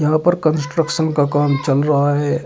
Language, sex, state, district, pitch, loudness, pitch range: Hindi, male, Uttar Pradesh, Shamli, 150 Hz, -17 LUFS, 145-155 Hz